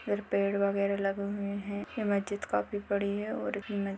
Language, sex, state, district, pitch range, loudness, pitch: Hindi, female, Chhattisgarh, Bastar, 200-205 Hz, -32 LUFS, 200 Hz